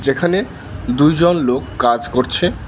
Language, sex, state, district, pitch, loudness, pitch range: Bengali, male, West Bengal, Alipurduar, 125 Hz, -16 LUFS, 120-170 Hz